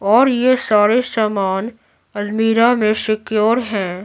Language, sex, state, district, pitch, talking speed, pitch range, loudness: Hindi, female, Bihar, Patna, 220 Hz, 120 wpm, 205-235 Hz, -16 LUFS